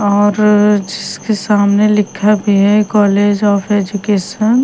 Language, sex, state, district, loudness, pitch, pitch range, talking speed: Hindi, female, Himachal Pradesh, Shimla, -12 LUFS, 205 Hz, 200-210 Hz, 130 wpm